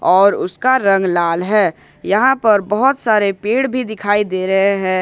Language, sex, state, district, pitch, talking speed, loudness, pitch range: Hindi, male, Jharkhand, Ranchi, 205 Hz, 180 wpm, -15 LUFS, 190-225 Hz